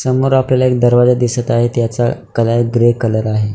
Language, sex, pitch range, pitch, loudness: Marathi, male, 115-125 Hz, 120 Hz, -14 LUFS